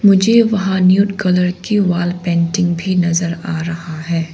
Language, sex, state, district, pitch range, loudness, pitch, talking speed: Hindi, female, Arunachal Pradesh, Longding, 170-195 Hz, -15 LUFS, 180 Hz, 150 wpm